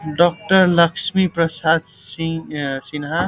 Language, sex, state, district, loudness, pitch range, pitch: Hindi, male, Bihar, Vaishali, -18 LUFS, 155-175 Hz, 165 Hz